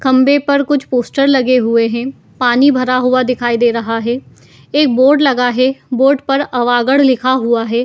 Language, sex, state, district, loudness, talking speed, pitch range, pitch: Hindi, female, Uttar Pradesh, Etah, -13 LUFS, 185 wpm, 245-275 Hz, 255 Hz